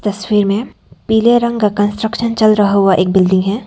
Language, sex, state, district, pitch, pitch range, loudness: Hindi, female, Arunachal Pradesh, Papum Pare, 205 Hz, 200-220 Hz, -13 LUFS